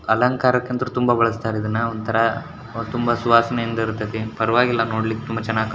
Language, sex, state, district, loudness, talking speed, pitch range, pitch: Kannada, male, Karnataka, Shimoga, -20 LUFS, 155 wpm, 110-120 Hz, 115 Hz